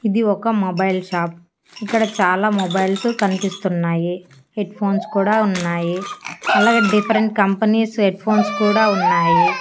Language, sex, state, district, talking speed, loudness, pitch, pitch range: Telugu, female, Andhra Pradesh, Annamaya, 105 wpm, -18 LUFS, 200 Hz, 185-215 Hz